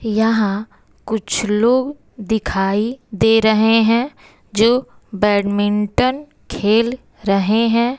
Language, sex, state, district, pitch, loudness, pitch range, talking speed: Hindi, female, Bihar, West Champaran, 220 Hz, -17 LUFS, 210-235 Hz, 90 wpm